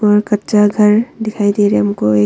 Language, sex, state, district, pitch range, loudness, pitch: Hindi, female, Arunachal Pradesh, Longding, 200-210 Hz, -13 LUFS, 210 Hz